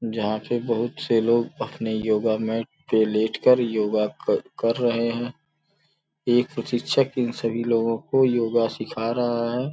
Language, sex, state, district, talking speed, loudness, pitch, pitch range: Hindi, male, Uttar Pradesh, Gorakhpur, 160 wpm, -23 LUFS, 115 Hz, 115-125 Hz